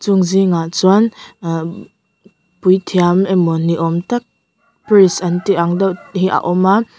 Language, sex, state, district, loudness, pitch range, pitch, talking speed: Mizo, female, Mizoram, Aizawl, -14 LUFS, 175-200 Hz, 185 Hz, 155 wpm